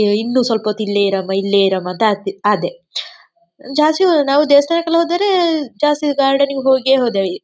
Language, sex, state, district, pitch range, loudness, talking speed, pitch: Kannada, female, Karnataka, Dakshina Kannada, 210-310 Hz, -15 LUFS, 155 wpm, 270 Hz